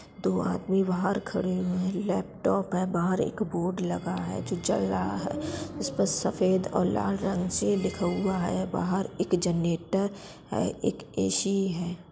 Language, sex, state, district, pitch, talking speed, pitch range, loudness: Bundeli, female, Uttar Pradesh, Budaun, 185 Hz, 185 wpm, 170-195 Hz, -28 LUFS